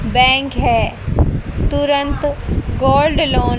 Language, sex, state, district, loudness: Hindi, female, Haryana, Jhajjar, -16 LUFS